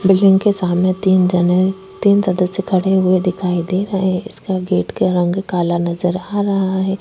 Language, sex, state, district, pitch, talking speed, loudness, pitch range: Hindi, female, Chhattisgarh, Korba, 185 Hz, 190 wpm, -16 LUFS, 180-195 Hz